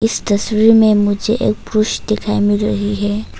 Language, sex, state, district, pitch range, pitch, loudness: Hindi, female, Arunachal Pradesh, Papum Pare, 205-215 Hz, 210 Hz, -15 LUFS